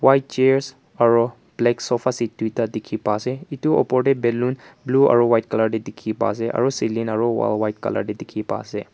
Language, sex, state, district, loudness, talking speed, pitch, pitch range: Nagamese, male, Nagaland, Kohima, -21 LUFS, 215 wpm, 120 Hz, 110-130 Hz